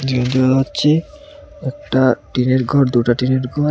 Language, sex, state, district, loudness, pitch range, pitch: Bengali, male, Tripura, West Tripura, -16 LUFS, 125-150 Hz, 130 Hz